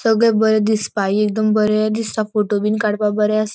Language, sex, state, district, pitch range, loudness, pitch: Konkani, female, Goa, North and South Goa, 210-215 Hz, -17 LUFS, 215 Hz